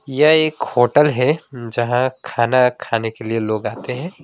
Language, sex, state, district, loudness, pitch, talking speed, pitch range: Hindi, male, West Bengal, Alipurduar, -18 LUFS, 125 Hz, 170 wpm, 115-150 Hz